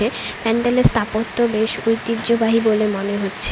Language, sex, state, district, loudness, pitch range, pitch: Bengali, female, West Bengal, Cooch Behar, -18 LUFS, 215-230 Hz, 225 Hz